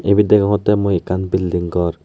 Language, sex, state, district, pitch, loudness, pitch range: Chakma, male, Tripura, West Tripura, 95 Hz, -16 LUFS, 90-100 Hz